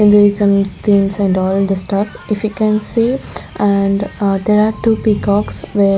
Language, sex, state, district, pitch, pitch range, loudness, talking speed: English, female, Chandigarh, Chandigarh, 205 Hz, 195-215 Hz, -15 LUFS, 210 wpm